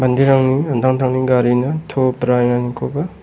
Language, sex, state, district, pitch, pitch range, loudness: Garo, male, Meghalaya, West Garo Hills, 130 Hz, 125-135 Hz, -16 LUFS